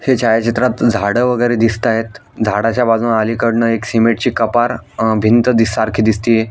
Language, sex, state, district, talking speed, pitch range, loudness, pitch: Marathi, male, Maharashtra, Aurangabad, 155 wpm, 110-120 Hz, -14 LUFS, 115 Hz